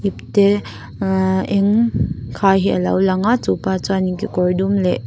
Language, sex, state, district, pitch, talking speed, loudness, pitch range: Mizo, female, Mizoram, Aizawl, 195 Hz, 155 wpm, -17 LUFS, 185-200 Hz